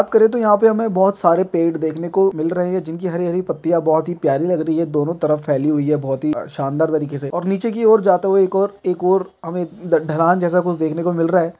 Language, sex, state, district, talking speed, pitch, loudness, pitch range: Hindi, male, Bihar, Darbhanga, 275 wpm, 175 Hz, -18 LUFS, 160-185 Hz